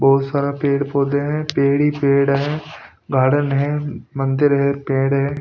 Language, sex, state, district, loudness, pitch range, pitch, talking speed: Hindi, male, Punjab, Pathankot, -18 LUFS, 140-145 Hz, 140 Hz, 165 wpm